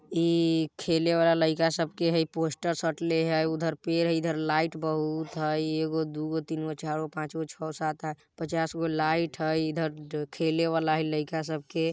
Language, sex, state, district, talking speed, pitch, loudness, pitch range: Bajjika, male, Bihar, Vaishali, 195 wpm, 160 Hz, -28 LUFS, 155-165 Hz